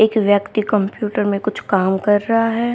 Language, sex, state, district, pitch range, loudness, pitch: Hindi, female, Haryana, Rohtak, 205-220 Hz, -17 LUFS, 210 Hz